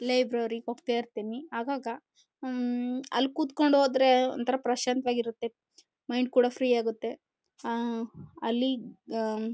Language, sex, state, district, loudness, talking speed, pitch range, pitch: Kannada, female, Karnataka, Chamarajanagar, -29 LUFS, 125 wpm, 230-255 Hz, 245 Hz